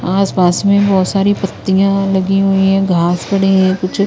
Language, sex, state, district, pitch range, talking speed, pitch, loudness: Hindi, female, Punjab, Kapurthala, 185-195 Hz, 175 wpm, 195 Hz, -13 LUFS